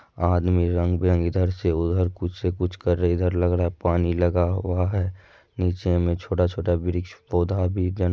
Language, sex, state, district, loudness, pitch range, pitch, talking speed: Maithili, male, Bihar, Madhepura, -23 LUFS, 85-90 Hz, 90 Hz, 185 wpm